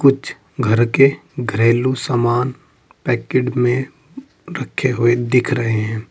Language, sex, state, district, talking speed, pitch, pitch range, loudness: Hindi, male, Uttar Pradesh, Saharanpur, 120 wpm, 125 Hz, 120-135 Hz, -17 LUFS